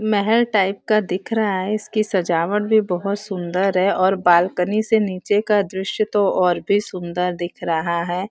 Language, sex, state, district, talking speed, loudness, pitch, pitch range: Hindi, female, Uttar Pradesh, Varanasi, 190 wpm, -19 LUFS, 195 Hz, 180-210 Hz